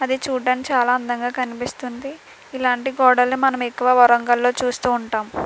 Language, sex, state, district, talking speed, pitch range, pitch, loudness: Telugu, female, Andhra Pradesh, Krishna, 130 wpm, 245-260 Hz, 250 Hz, -19 LUFS